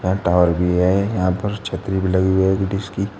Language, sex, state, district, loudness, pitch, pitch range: Hindi, male, Uttar Pradesh, Shamli, -19 LUFS, 95 Hz, 90-100 Hz